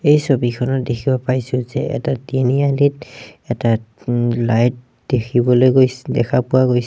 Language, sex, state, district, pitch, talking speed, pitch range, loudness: Assamese, male, Assam, Sonitpur, 125 Hz, 130 wpm, 120-130 Hz, -17 LUFS